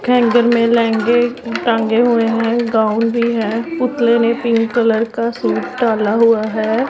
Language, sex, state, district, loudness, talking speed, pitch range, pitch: Hindi, female, Punjab, Pathankot, -15 LUFS, 155 wpm, 225-240 Hz, 230 Hz